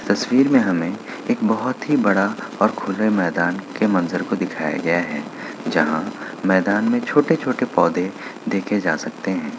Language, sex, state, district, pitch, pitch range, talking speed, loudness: Hindi, male, Bihar, Kishanganj, 110 Hz, 95-125 Hz, 155 wpm, -20 LUFS